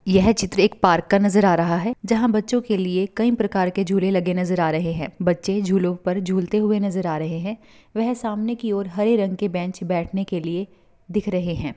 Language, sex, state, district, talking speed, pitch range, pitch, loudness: Hindi, female, Rajasthan, Churu, 230 wpm, 180-210 Hz, 195 Hz, -21 LUFS